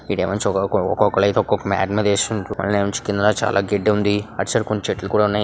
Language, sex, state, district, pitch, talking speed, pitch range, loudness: Telugu, male, Andhra Pradesh, Srikakulam, 105 Hz, 185 wpm, 100-105 Hz, -19 LUFS